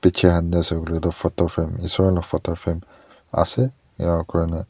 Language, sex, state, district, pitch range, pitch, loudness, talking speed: Nagamese, male, Nagaland, Dimapur, 85-90 Hz, 85 Hz, -22 LUFS, 180 wpm